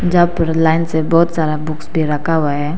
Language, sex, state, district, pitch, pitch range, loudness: Hindi, female, Arunachal Pradesh, Papum Pare, 160 Hz, 155-165 Hz, -16 LUFS